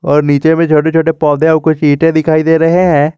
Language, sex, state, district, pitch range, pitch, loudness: Hindi, male, Jharkhand, Garhwa, 150-160 Hz, 160 Hz, -10 LUFS